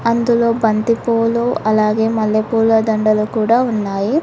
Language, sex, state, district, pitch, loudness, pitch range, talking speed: Telugu, female, Telangana, Hyderabad, 225 Hz, -15 LUFS, 215-230 Hz, 100 wpm